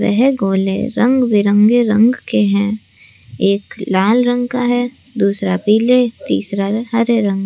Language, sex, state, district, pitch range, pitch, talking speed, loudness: Hindi, female, Rajasthan, Jaipur, 195-245 Hz, 210 Hz, 145 wpm, -15 LUFS